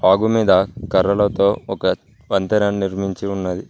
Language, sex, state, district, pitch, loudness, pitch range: Telugu, male, Telangana, Mahabubabad, 100 Hz, -18 LUFS, 95-105 Hz